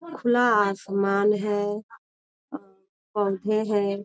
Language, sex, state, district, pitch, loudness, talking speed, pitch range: Hindi, female, Bihar, Jamui, 205 Hz, -24 LUFS, 75 wpm, 200-220 Hz